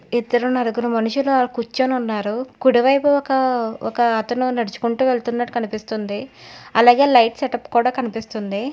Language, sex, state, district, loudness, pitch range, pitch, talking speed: Telugu, female, Telangana, Hyderabad, -19 LUFS, 230-260 Hz, 240 Hz, 125 wpm